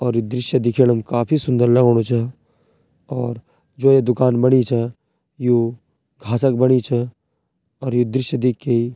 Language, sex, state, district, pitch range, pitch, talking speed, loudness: Garhwali, male, Uttarakhand, Tehri Garhwal, 120-130 Hz, 125 Hz, 160 wpm, -18 LUFS